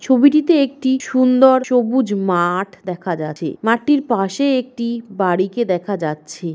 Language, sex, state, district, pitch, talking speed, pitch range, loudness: Bengali, female, West Bengal, North 24 Parganas, 230 Hz, 130 wpm, 185-260 Hz, -17 LUFS